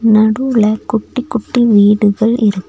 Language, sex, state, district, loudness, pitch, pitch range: Tamil, female, Tamil Nadu, Nilgiris, -12 LUFS, 220 Hz, 210-235 Hz